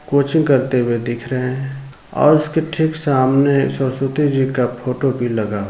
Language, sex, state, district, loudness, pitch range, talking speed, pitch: Hindi, male, Uttar Pradesh, Ghazipur, -17 LUFS, 125-140 Hz, 180 wpm, 135 Hz